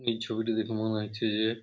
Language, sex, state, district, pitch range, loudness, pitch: Bengali, male, West Bengal, Purulia, 110-115 Hz, -31 LUFS, 110 Hz